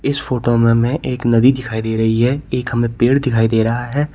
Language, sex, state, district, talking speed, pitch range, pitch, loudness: Hindi, male, Uttar Pradesh, Shamli, 245 wpm, 115-130 Hz, 120 Hz, -16 LUFS